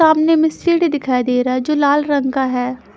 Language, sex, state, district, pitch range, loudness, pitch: Hindi, female, Haryana, Charkhi Dadri, 255-315 Hz, -16 LUFS, 285 Hz